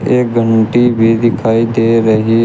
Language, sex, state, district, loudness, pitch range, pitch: Hindi, male, Uttar Pradesh, Shamli, -11 LUFS, 115-120 Hz, 115 Hz